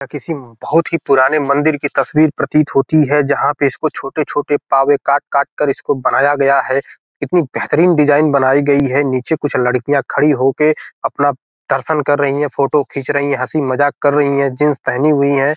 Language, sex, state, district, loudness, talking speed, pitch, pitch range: Hindi, male, Bihar, Gopalganj, -14 LUFS, 195 wpm, 145 Hz, 140-150 Hz